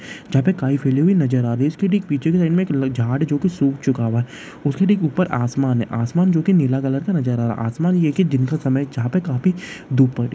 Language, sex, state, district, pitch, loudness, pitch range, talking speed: Hindi, male, Bihar, Darbhanga, 140 Hz, -19 LUFS, 130-175 Hz, 295 wpm